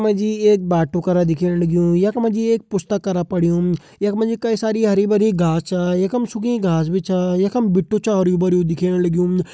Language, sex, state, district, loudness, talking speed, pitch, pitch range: Hindi, male, Uttarakhand, Uttarkashi, -18 LUFS, 225 wpm, 190 Hz, 175-215 Hz